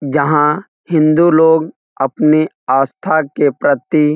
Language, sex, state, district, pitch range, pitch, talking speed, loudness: Hindi, male, Bihar, Muzaffarpur, 145-160 Hz, 150 Hz, 115 wpm, -13 LUFS